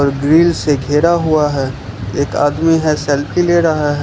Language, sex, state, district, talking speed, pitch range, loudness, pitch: Hindi, male, Gujarat, Valsad, 180 wpm, 140-160 Hz, -14 LUFS, 150 Hz